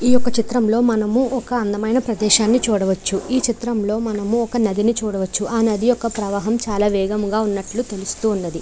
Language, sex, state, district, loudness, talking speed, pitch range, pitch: Telugu, female, Andhra Pradesh, Chittoor, -19 LUFS, 140 wpm, 205-235 Hz, 220 Hz